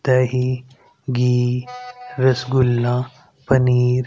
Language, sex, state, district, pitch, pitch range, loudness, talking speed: Hindi, male, Haryana, Rohtak, 130 Hz, 125-130 Hz, -19 LUFS, 60 wpm